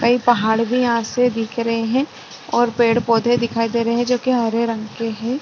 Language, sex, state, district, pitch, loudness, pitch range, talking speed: Hindi, female, Chhattisgarh, Rajnandgaon, 235 Hz, -19 LUFS, 230-245 Hz, 235 wpm